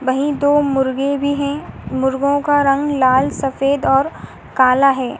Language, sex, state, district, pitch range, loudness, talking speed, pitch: Hindi, female, Uttar Pradesh, Hamirpur, 265-285 Hz, -16 LUFS, 150 wpm, 275 Hz